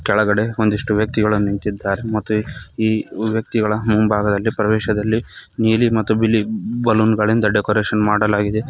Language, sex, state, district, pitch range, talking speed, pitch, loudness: Kannada, male, Karnataka, Koppal, 105-110 Hz, 110 wpm, 110 Hz, -18 LUFS